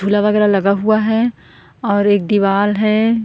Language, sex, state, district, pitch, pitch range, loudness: Hindi, female, Chhattisgarh, Korba, 210 Hz, 200-220 Hz, -15 LUFS